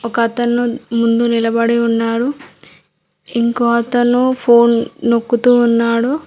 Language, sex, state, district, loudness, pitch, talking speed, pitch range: Telugu, female, Telangana, Mahabubabad, -14 LUFS, 235 Hz, 85 wpm, 230-245 Hz